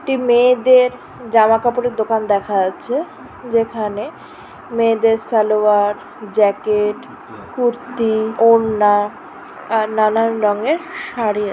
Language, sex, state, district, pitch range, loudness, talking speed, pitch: Bengali, female, West Bengal, Purulia, 210-245 Hz, -16 LUFS, 70 wpm, 225 Hz